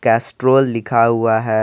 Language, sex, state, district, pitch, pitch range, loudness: Hindi, male, Jharkhand, Garhwa, 115 Hz, 115-120 Hz, -15 LUFS